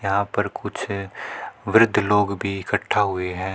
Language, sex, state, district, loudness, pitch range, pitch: Hindi, male, Haryana, Rohtak, -22 LUFS, 95-100 Hz, 100 Hz